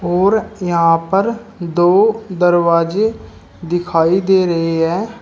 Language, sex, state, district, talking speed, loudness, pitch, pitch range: Hindi, male, Uttar Pradesh, Shamli, 105 wpm, -15 LUFS, 175 Hz, 170-205 Hz